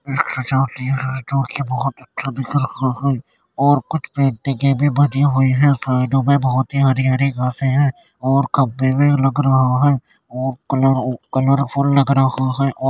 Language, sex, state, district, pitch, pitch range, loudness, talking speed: Hindi, male, Uttar Pradesh, Jyotiba Phule Nagar, 135 Hz, 130-140 Hz, -17 LUFS, 140 wpm